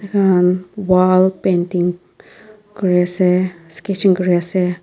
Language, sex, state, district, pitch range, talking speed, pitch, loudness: Nagamese, female, Nagaland, Dimapur, 180-190 Hz, 60 wpm, 185 Hz, -16 LUFS